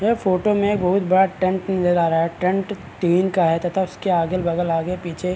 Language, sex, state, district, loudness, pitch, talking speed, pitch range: Hindi, male, Bihar, Vaishali, -20 LUFS, 185 Hz, 225 wpm, 175-190 Hz